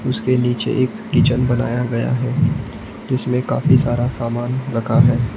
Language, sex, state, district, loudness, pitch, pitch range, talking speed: Hindi, male, Maharashtra, Gondia, -18 LUFS, 125 Hz, 120-130 Hz, 145 wpm